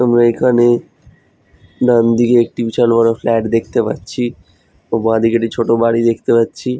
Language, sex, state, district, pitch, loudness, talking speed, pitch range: Bengali, male, West Bengal, Jhargram, 115 Hz, -14 LUFS, 160 wpm, 115-120 Hz